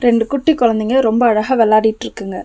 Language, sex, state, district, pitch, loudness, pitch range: Tamil, female, Tamil Nadu, Nilgiris, 230 Hz, -14 LUFS, 215-250 Hz